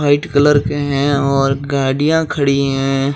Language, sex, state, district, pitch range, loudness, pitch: Hindi, male, Rajasthan, Jaisalmer, 135-145 Hz, -15 LUFS, 140 Hz